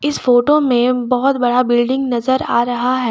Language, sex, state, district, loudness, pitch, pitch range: Hindi, female, Jharkhand, Garhwa, -15 LUFS, 250 Hz, 245-265 Hz